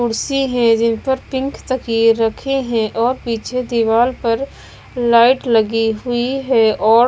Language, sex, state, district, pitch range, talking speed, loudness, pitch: Hindi, female, Bihar, West Champaran, 225-260 Hz, 155 wpm, -16 LUFS, 235 Hz